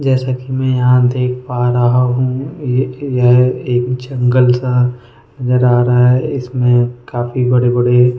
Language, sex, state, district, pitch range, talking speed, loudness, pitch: Hindi, male, Goa, North and South Goa, 125-130 Hz, 155 wpm, -14 LUFS, 125 Hz